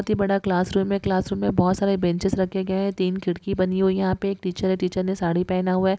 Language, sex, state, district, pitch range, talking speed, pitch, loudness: Hindi, female, Andhra Pradesh, Guntur, 185-195 Hz, 260 wpm, 190 Hz, -23 LUFS